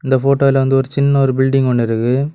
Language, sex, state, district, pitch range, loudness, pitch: Tamil, male, Tamil Nadu, Kanyakumari, 130-140 Hz, -14 LUFS, 135 Hz